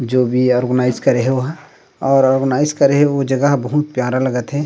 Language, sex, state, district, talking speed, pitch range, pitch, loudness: Chhattisgarhi, male, Chhattisgarh, Rajnandgaon, 220 wpm, 125-145 Hz, 130 Hz, -16 LUFS